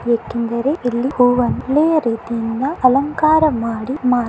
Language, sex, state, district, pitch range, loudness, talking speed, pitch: Kannada, female, Karnataka, Dakshina Kannada, 235-285 Hz, -17 LUFS, 110 wpm, 250 Hz